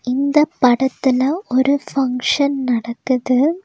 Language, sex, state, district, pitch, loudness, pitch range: Tamil, female, Tamil Nadu, Nilgiris, 265 Hz, -17 LUFS, 250-280 Hz